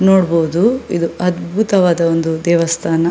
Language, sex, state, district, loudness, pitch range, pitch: Kannada, female, Karnataka, Dakshina Kannada, -15 LUFS, 165-190 Hz, 170 Hz